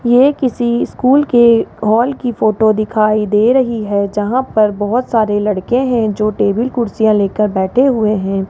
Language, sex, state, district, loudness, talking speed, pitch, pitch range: Hindi, male, Rajasthan, Jaipur, -14 LUFS, 170 wpm, 220 Hz, 210-245 Hz